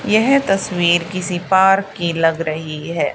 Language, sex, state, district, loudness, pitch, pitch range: Hindi, female, Haryana, Charkhi Dadri, -17 LUFS, 180 Hz, 165-195 Hz